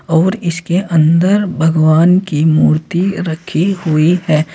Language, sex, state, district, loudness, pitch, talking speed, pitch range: Hindi, male, Uttar Pradesh, Saharanpur, -13 LUFS, 165 Hz, 120 wpm, 160-185 Hz